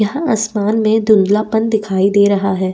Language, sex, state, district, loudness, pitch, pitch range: Hindi, female, Chhattisgarh, Bastar, -14 LUFS, 210 Hz, 200-220 Hz